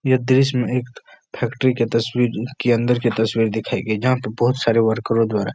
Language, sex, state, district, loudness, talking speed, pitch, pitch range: Hindi, male, Uttar Pradesh, Etah, -19 LUFS, 215 wpm, 120 Hz, 115-125 Hz